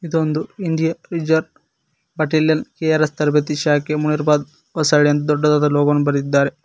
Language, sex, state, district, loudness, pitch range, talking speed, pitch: Kannada, male, Karnataka, Koppal, -18 LUFS, 150-160 Hz, 160 wpm, 150 Hz